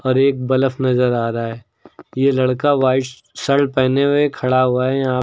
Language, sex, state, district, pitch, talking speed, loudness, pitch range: Hindi, male, Uttar Pradesh, Lucknow, 130 Hz, 185 wpm, -17 LUFS, 125-135 Hz